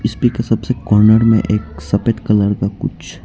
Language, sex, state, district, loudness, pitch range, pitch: Hindi, male, Arunachal Pradesh, Lower Dibang Valley, -15 LUFS, 100-115 Hz, 105 Hz